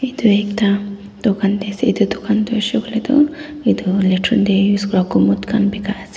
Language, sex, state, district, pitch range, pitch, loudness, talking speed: Nagamese, female, Nagaland, Dimapur, 200-225 Hz, 205 Hz, -17 LUFS, 185 wpm